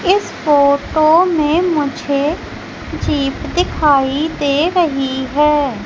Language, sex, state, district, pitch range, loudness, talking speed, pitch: Hindi, female, Madhya Pradesh, Umaria, 280-320 Hz, -15 LUFS, 90 wpm, 295 Hz